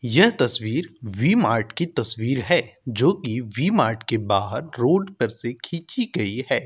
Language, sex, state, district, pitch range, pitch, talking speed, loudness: Hindi, male, Uttar Pradesh, Hamirpur, 115-170 Hz, 125 Hz, 160 wpm, -22 LUFS